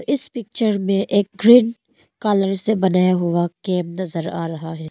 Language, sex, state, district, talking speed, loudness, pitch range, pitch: Hindi, female, Arunachal Pradesh, Longding, 170 wpm, -19 LUFS, 175-220 Hz, 195 Hz